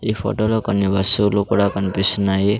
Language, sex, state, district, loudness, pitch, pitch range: Telugu, male, Andhra Pradesh, Sri Satya Sai, -17 LUFS, 100 Hz, 95-105 Hz